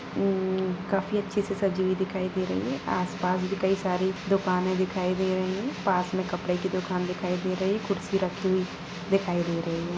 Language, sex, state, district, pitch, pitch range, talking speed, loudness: Hindi, female, Bihar, Jahanabad, 185 Hz, 180-195 Hz, 210 wpm, -28 LUFS